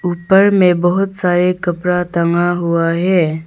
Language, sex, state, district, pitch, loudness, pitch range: Hindi, female, Arunachal Pradesh, Longding, 175 Hz, -14 LUFS, 170-180 Hz